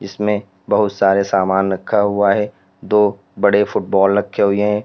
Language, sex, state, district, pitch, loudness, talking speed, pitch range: Hindi, male, Uttar Pradesh, Lalitpur, 100 Hz, -16 LUFS, 175 wpm, 95-105 Hz